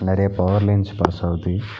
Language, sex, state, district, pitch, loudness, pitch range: Tamil, male, Tamil Nadu, Nilgiris, 95 Hz, -20 LUFS, 90-100 Hz